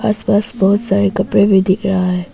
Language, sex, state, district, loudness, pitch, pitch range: Hindi, female, Arunachal Pradesh, Papum Pare, -14 LUFS, 195 Hz, 190-205 Hz